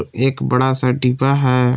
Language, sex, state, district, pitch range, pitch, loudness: Hindi, male, Jharkhand, Palamu, 125-130 Hz, 125 Hz, -15 LUFS